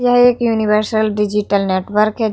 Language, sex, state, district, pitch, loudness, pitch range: Hindi, female, Bihar, Vaishali, 215 Hz, -15 LUFS, 210-225 Hz